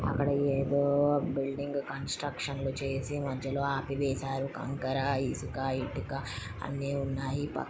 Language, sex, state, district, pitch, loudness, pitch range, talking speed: Telugu, female, Andhra Pradesh, Srikakulam, 135 Hz, -32 LUFS, 135-140 Hz, 85 wpm